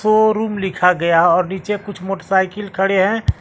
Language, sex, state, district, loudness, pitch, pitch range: Hindi, male, Bihar, West Champaran, -17 LUFS, 195 Hz, 190-205 Hz